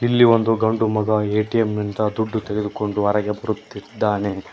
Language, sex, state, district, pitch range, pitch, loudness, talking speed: Kannada, male, Karnataka, Koppal, 105-110 Hz, 105 Hz, -20 LUFS, 130 wpm